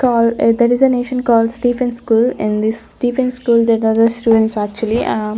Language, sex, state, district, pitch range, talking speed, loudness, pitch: English, female, Chandigarh, Chandigarh, 225-245 Hz, 210 wpm, -15 LUFS, 230 Hz